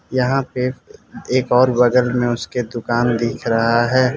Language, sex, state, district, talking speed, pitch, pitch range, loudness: Hindi, male, Arunachal Pradesh, Lower Dibang Valley, 160 wpm, 125 Hz, 120-130 Hz, -18 LUFS